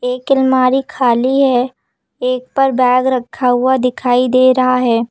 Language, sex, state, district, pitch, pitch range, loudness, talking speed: Hindi, female, Uttar Pradesh, Lucknow, 255 Hz, 250-260 Hz, -13 LUFS, 155 wpm